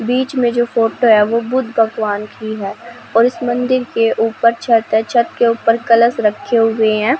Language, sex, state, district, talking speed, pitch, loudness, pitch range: Hindi, female, Chhattisgarh, Raipur, 200 wpm, 230 Hz, -15 LUFS, 225-240 Hz